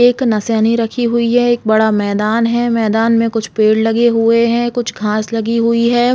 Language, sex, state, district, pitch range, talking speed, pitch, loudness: Hindi, female, Chhattisgarh, Bilaspur, 220-235 Hz, 205 wpm, 230 Hz, -14 LUFS